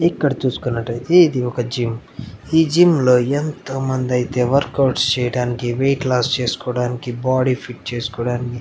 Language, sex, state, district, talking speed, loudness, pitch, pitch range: Telugu, male, Andhra Pradesh, Anantapur, 140 wpm, -18 LUFS, 125 Hz, 120-135 Hz